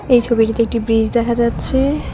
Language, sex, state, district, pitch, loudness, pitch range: Bengali, female, West Bengal, Cooch Behar, 235 Hz, -16 LUFS, 230-245 Hz